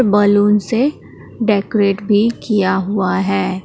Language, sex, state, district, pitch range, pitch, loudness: Hindi, female, Jharkhand, Palamu, 195-215 Hz, 205 Hz, -15 LUFS